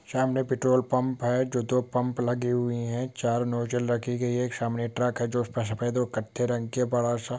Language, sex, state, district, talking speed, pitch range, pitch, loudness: Hindi, male, West Bengal, Dakshin Dinajpur, 195 wpm, 120-125 Hz, 120 Hz, -28 LUFS